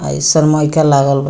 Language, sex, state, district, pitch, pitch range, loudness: Bhojpuri, female, Bihar, Muzaffarpur, 145 Hz, 135-155 Hz, -12 LUFS